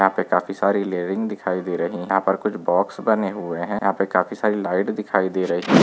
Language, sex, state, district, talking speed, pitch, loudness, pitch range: Hindi, male, Andhra Pradesh, Visakhapatnam, 225 wpm, 95 Hz, -22 LUFS, 90-100 Hz